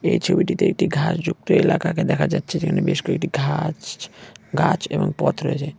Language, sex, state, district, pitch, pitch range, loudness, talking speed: Bengali, male, West Bengal, Cooch Behar, 170 Hz, 155-180 Hz, -21 LUFS, 175 wpm